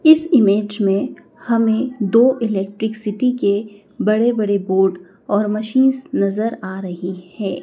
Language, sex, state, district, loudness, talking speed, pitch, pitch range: Hindi, female, Madhya Pradesh, Dhar, -18 LUFS, 135 wpm, 210 Hz, 195-235 Hz